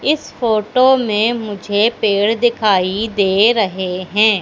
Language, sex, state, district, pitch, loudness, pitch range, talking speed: Hindi, female, Madhya Pradesh, Katni, 215 Hz, -15 LUFS, 200-230 Hz, 120 wpm